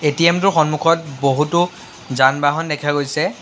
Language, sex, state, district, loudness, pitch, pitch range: Assamese, male, Assam, Sonitpur, -17 LUFS, 150 Hz, 145-165 Hz